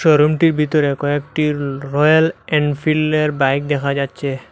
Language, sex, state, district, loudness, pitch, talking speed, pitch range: Bengali, male, Assam, Hailakandi, -17 LUFS, 150 Hz, 105 wpm, 140-155 Hz